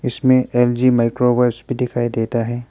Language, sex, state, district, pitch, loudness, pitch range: Hindi, male, Arunachal Pradesh, Papum Pare, 120 Hz, -17 LUFS, 120-125 Hz